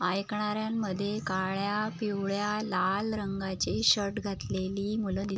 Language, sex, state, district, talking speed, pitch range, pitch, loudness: Marathi, female, Maharashtra, Sindhudurg, 100 wpm, 190-210 Hz, 200 Hz, -31 LUFS